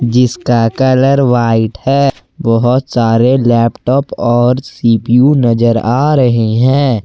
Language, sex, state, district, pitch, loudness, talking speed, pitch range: Hindi, male, Jharkhand, Ranchi, 120 Hz, -11 LUFS, 110 wpm, 115-135 Hz